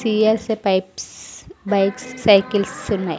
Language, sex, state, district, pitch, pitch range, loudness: Telugu, female, Andhra Pradesh, Sri Satya Sai, 205 Hz, 195-220 Hz, -19 LUFS